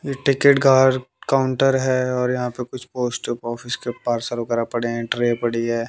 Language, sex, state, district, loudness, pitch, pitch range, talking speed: Hindi, male, Haryana, Jhajjar, -20 LUFS, 125 Hz, 120-130 Hz, 195 wpm